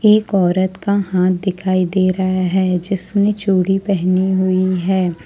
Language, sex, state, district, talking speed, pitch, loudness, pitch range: Hindi, female, Jharkhand, Ranchi, 150 wpm, 185 Hz, -16 LUFS, 185-195 Hz